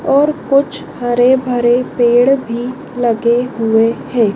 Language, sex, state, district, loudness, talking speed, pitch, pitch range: Hindi, female, Madhya Pradesh, Dhar, -14 LUFS, 125 wpm, 245 Hz, 235-265 Hz